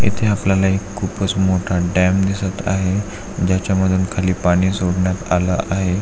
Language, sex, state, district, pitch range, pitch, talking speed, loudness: Marathi, male, Maharashtra, Aurangabad, 90-95 Hz, 95 Hz, 150 wpm, -18 LUFS